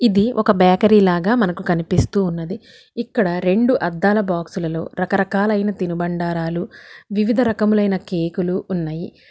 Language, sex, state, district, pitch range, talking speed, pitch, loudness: Telugu, female, Telangana, Hyderabad, 175-215 Hz, 110 wpm, 190 Hz, -18 LUFS